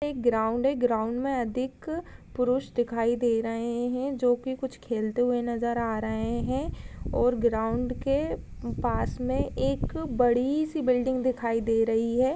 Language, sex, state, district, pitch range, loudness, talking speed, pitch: Hindi, female, Uttar Pradesh, Budaun, 230-260 Hz, -28 LUFS, 165 wpm, 245 Hz